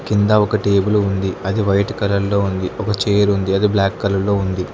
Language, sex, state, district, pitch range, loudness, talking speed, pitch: Telugu, male, Telangana, Hyderabad, 95-105 Hz, -17 LUFS, 215 wpm, 100 Hz